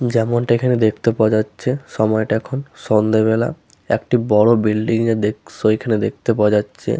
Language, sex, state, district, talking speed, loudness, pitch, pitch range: Bengali, male, West Bengal, Malda, 145 wpm, -18 LUFS, 110 Hz, 110-120 Hz